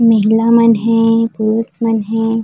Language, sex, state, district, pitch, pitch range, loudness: Chhattisgarhi, female, Chhattisgarh, Raigarh, 225 Hz, 225-230 Hz, -13 LUFS